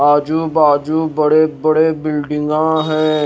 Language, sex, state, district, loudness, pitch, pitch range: Hindi, male, Himachal Pradesh, Shimla, -15 LUFS, 155 Hz, 150-155 Hz